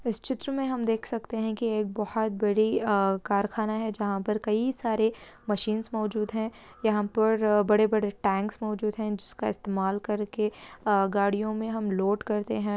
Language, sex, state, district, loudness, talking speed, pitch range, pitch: Hindi, female, Bihar, Bhagalpur, -28 LUFS, 175 wpm, 205-220 Hz, 215 Hz